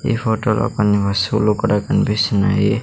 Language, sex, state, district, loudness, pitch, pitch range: Telugu, male, Andhra Pradesh, Sri Satya Sai, -17 LUFS, 105 Hz, 100-110 Hz